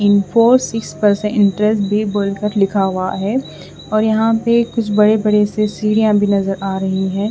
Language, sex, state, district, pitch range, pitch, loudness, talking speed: Hindi, female, Odisha, Khordha, 195-215 Hz, 210 Hz, -15 LUFS, 165 wpm